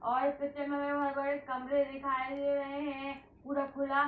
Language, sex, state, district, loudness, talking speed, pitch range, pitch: Hindi, female, Uttar Pradesh, Hamirpur, -35 LUFS, 130 wpm, 275-285 Hz, 280 Hz